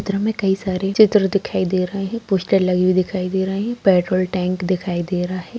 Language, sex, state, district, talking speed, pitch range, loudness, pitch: Hindi, female, Bihar, Darbhanga, 235 wpm, 185-200 Hz, -19 LUFS, 190 Hz